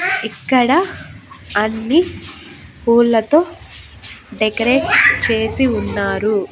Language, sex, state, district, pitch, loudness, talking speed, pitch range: Telugu, female, Andhra Pradesh, Annamaya, 235 Hz, -15 LUFS, 55 wpm, 215-285 Hz